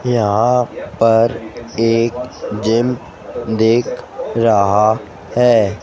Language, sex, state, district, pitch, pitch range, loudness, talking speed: Hindi, female, Madhya Pradesh, Dhar, 115 Hz, 105-120 Hz, -15 LUFS, 70 wpm